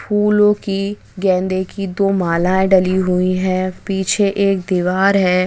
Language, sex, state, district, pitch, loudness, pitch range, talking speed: Hindi, female, Bihar, Gaya, 190 Hz, -16 LUFS, 185-200 Hz, 145 wpm